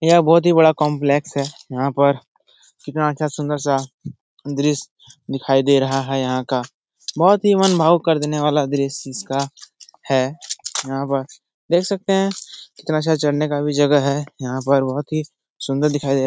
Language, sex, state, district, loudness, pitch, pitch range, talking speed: Hindi, male, Bihar, Jahanabad, -19 LUFS, 145 Hz, 135-155 Hz, 180 wpm